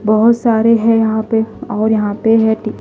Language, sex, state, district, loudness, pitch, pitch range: Hindi, female, Delhi, New Delhi, -13 LUFS, 220 Hz, 220-230 Hz